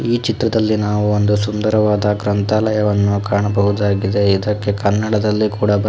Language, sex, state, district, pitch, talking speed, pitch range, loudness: Kannada, male, Karnataka, Shimoga, 105 Hz, 120 wpm, 100-105 Hz, -16 LUFS